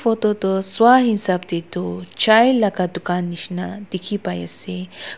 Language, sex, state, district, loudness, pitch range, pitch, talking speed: Nagamese, female, Nagaland, Dimapur, -18 LUFS, 170-210 Hz, 185 Hz, 150 wpm